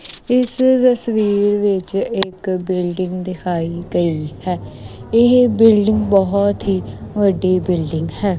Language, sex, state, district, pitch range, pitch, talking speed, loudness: Punjabi, female, Punjab, Kapurthala, 180-210 Hz, 195 Hz, 105 wpm, -17 LUFS